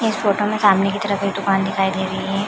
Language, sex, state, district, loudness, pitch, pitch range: Hindi, female, Uttar Pradesh, Jalaun, -19 LUFS, 200 Hz, 195-205 Hz